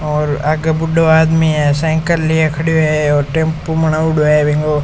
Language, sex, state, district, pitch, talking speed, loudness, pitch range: Rajasthani, male, Rajasthan, Churu, 155 Hz, 175 wpm, -14 LUFS, 150-160 Hz